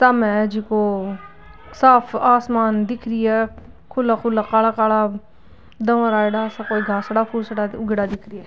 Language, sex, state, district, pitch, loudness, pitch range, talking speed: Marwari, female, Rajasthan, Nagaur, 220 Hz, -19 LUFS, 210-230 Hz, 115 wpm